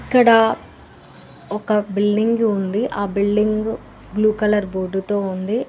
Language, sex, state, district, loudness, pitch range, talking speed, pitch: Telugu, female, Telangana, Mahabubabad, -19 LUFS, 200-220 Hz, 105 wpm, 210 Hz